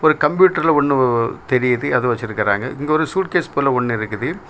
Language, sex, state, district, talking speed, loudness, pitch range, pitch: Tamil, male, Tamil Nadu, Kanyakumari, 145 wpm, -17 LUFS, 125-155 Hz, 135 Hz